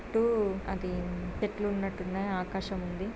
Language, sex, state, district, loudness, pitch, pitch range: Telugu, female, Andhra Pradesh, Srikakulam, -33 LUFS, 195 Hz, 185-205 Hz